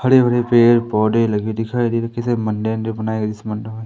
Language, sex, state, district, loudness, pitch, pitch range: Hindi, male, Madhya Pradesh, Umaria, -18 LUFS, 115 Hz, 110-120 Hz